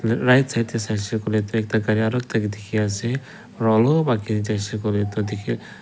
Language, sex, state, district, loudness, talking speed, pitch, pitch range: Nagamese, male, Nagaland, Dimapur, -22 LUFS, 205 wpm, 110 Hz, 105-115 Hz